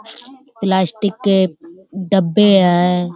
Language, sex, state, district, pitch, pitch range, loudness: Hindi, female, Uttar Pradesh, Budaun, 190 Hz, 180-205 Hz, -15 LUFS